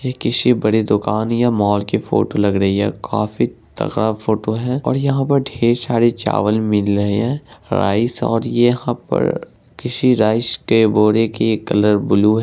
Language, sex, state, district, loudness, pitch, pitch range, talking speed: Hindi, male, Bihar, Araria, -17 LUFS, 110 Hz, 105-120 Hz, 180 wpm